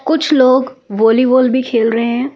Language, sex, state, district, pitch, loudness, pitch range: Hindi, female, Delhi, New Delhi, 255 Hz, -13 LUFS, 235-260 Hz